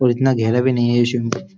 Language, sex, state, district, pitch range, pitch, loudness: Hindi, male, Uttar Pradesh, Jyotiba Phule Nagar, 120-130 Hz, 120 Hz, -17 LUFS